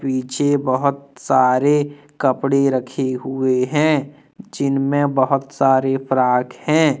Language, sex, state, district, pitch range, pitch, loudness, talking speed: Hindi, male, Jharkhand, Deoghar, 130-145 Hz, 135 Hz, -18 LUFS, 110 wpm